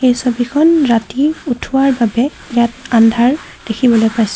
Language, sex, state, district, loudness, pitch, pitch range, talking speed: Assamese, female, Assam, Kamrup Metropolitan, -13 LUFS, 245 Hz, 230-270 Hz, 110 wpm